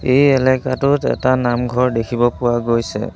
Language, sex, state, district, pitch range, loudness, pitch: Assamese, male, Assam, Sonitpur, 120-130 Hz, -16 LUFS, 125 Hz